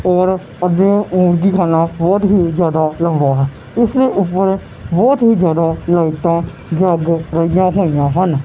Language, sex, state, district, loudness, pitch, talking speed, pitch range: Punjabi, male, Punjab, Kapurthala, -14 LUFS, 175 Hz, 120 wpm, 165-190 Hz